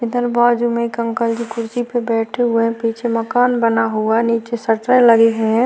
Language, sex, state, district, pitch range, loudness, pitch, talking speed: Hindi, female, Uttarakhand, Tehri Garhwal, 230-240 Hz, -16 LUFS, 230 Hz, 225 wpm